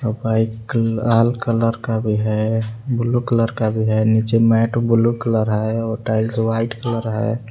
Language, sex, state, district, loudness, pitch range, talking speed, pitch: Hindi, male, Jharkhand, Palamu, -18 LUFS, 110-115 Hz, 170 wpm, 115 Hz